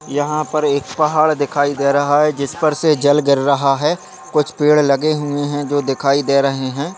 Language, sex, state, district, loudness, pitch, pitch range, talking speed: Hindi, male, Chhattisgarh, Sarguja, -16 LUFS, 145 Hz, 140-150 Hz, 215 wpm